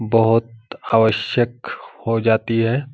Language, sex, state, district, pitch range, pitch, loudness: Hindi, male, Bihar, Saran, 110-115 Hz, 115 Hz, -18 LUFS